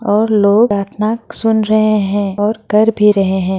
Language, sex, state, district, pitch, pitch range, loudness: Hindi, female, Bihar, Madhepura, 210 Hz, 200-220 Hz, -13 LUFS